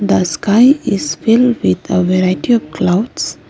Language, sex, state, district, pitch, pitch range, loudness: English, female, Arunachal Pradesh, Lower Dibang Valley, 200 Hz, 185-240 Hz, -13 LUFS